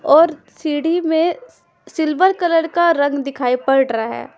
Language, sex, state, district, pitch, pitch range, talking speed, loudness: Hindi, female, Punjab, Fazilka, 320 Hz, 280-340 Hz, 150 wpm, -17 LUFS